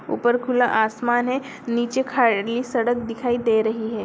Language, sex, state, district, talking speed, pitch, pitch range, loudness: Hindi, female, Bihar, Sitamarhi, 180 wpm, 240 Hz, 225-245 Hz, -21 LUFS